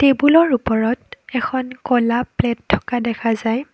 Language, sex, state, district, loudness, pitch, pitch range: Assamese, female, Assam, Kamrup Metropolitan, -18 LUFS, 245 Hz, 230-260 Hz